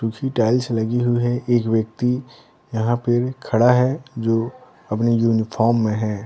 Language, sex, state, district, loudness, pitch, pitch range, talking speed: Hindi, male, Bihar, Patna, -20 LUFS, 115 Hz, 110-125 Hz, 165 wpm